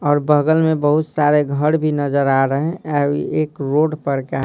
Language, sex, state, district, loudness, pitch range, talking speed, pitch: Hindi, male, Bihar, Patna, -17 LUFS, 140-155 Hz, 200 wpm, 145 Hz